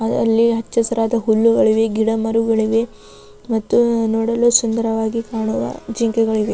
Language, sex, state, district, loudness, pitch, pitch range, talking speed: Kannada, female, Karnataka, Raichur, -17 LUFS, 225 Hz, 220-230 Hz, 100 wpm